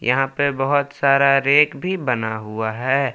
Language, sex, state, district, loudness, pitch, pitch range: Hindi, male, Jharkhand, Palamu, -19 LUFS, 135 Hz, 125-140 Hz